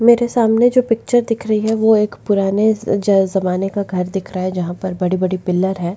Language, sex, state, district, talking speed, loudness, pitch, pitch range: Hindi, female, Goa, North and South Goa, 230 wpm, -17 LUFS, 200 Hz, 185-220 Hz